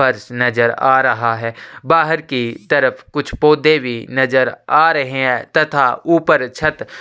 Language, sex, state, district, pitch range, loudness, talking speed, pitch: Hindi, male, Chhattisgarh, Sukma, 125-150 Hz, -15 LUFS, 160 wpm, 130 Hz